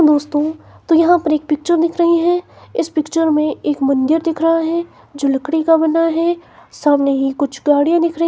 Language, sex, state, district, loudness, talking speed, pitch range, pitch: Hindi, female, Himachal Pradesh, Shimla, -16 LUFS, 205 wpm, 295-335 Hz, 320 Hz